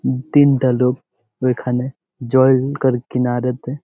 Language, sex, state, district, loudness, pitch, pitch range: Bengali, male, West Bengal, Jalpaiguri, -17 LUFS, 130 Hz, 125-130 Hz